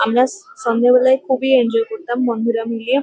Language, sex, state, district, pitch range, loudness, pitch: Bengali, female, West Bengal, Kolkata, 230-260 Hz, -17 LUFS, 245 Hz